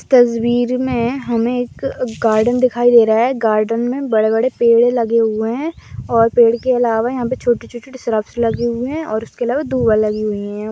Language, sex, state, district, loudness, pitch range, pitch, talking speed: Hindi, female, Maharashtra, Sindhudurg, -16 LUFS, 225-250 Hz, 235 Hz, 200 wpm